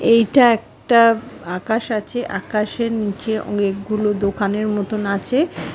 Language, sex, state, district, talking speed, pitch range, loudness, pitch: Bengali, female, West Bengal, Malda, 115 wpm, 205-230 Hz, -19 LUFS, 215 Hz